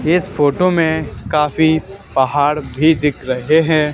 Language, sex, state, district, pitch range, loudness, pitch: Hindi, male, Haryana, Charkhi Dadri, 145-160 Hz, -15 LUFS, 155 Hz